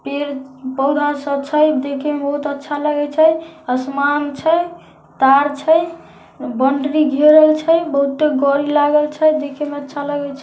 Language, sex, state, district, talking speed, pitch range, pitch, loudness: Magahi, male, Bihar, Samastipur, 140 wpm, 280-305 Hz, 290 Hz, -16 LUFS